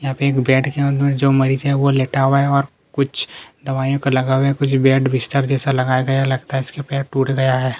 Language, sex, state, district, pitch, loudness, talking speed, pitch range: Hindi, male, Chhattisgarh, Kabirdham, 135 Hz, -17 LUFS, 260 wpm, 135-140 Hz